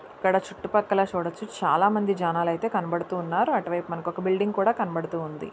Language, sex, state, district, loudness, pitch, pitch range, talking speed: Telugu, female, Andhra Pradesh, Anantapur, -26 LUFS, 185 Hz, 170-200 Hz, 140 wpm